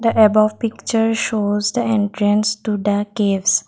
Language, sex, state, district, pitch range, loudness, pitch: English, female, Assam, Kamrup Metropolitan, 205-225 Hz, -18 LUFS, 215 Hz